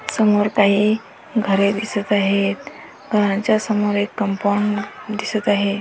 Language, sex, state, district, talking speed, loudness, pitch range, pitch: Marathi, female, Maharashtra, Dhule, 115 wpm, -19 LUFS, 200-215 Hz, 205 Hz